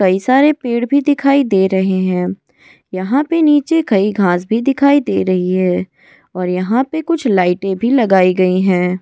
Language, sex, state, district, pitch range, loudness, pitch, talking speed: Hindi, female, Goa, North and South Goa, 185-275 Hz, -14 LUFS, 195 Hz, 180 wpm